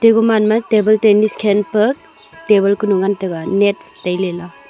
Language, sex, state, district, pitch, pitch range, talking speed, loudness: Wancho, female, Arunachal Pradesh, Longding, 205 Hz, 185-215 Hz, 130 wpm, -15 LUFS